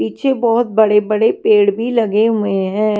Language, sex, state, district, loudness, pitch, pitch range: Hindi, female, Himachal Pradesh, Shimla, -14 LUFS, 220 Hz, 210-245 Hz